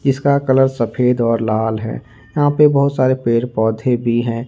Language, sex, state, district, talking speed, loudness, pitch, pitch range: Hindi, male, Jharkhand, Ranchi, 185 wpm, -16 LUFS, 125 Hz, 115-135 Hz